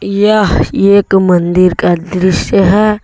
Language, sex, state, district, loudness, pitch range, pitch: Hindi, male, Jharkhand, Deoghar, -10 LUFS, 180-200 Hz, 195 Hz